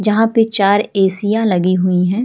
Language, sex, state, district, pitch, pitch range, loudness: Hindi, female, Uttar Pradesh, Jalaun, 205 Hz, 185-220 Hz, -14 LUFS